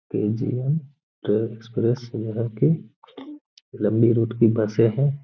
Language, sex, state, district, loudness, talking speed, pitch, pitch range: Hindi, male, Bihar, Gaya, -23 LUFS, 70 wpm, 115 Hz, 110-140 Hz